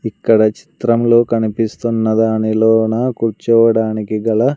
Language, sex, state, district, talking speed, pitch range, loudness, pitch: Telugu, male, Andhra Pradesh, Sri Satya Sai, 90 wpm, 110-115 Hz, -15 LUFS, 115 Hz